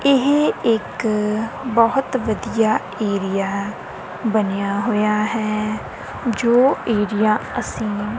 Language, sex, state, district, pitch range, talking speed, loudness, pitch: Punjabi, female, Punjab, Kapurthala, 210-235 Hz, 80 wpm, -20 LUFS, 215 Hz